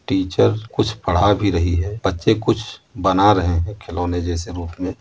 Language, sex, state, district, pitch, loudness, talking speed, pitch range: Hindi, male, Uttar Pradesh, Muzaffarnagar, 95 Hz, -19 LUFS, 190 wpm, 85-105 Hz